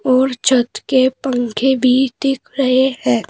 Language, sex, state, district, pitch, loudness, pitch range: Hindi, female, Uttar Pradesh, Shamli, 260 Hz, -16 LUFS, 250-265 Hz